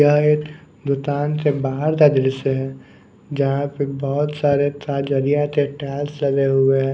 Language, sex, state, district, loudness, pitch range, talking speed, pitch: Hindi, male, Bihar, West Champaran, -20 LUFS, 135-145 Hz, 155 wpm, 145 Hz